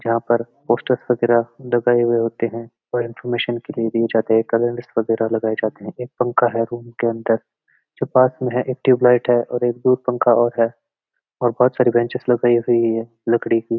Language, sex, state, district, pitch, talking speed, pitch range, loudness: Marwari, male, Rajasthan, Nagaur, 120 Hz, 215 wpm, 115-125 Hz, -19 LUFS